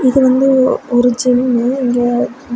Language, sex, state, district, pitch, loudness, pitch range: Tamil, female, Tamil Nadu, Kanyakumari, 250 Hz, -13 LUFS, 245-260 Hz